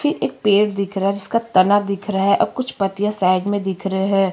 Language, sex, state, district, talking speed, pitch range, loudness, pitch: Hindi, female, Chhattisgarh, Kabirdham, 265 wpm, 195-210 Hz, -19 LUFS, 200 Hz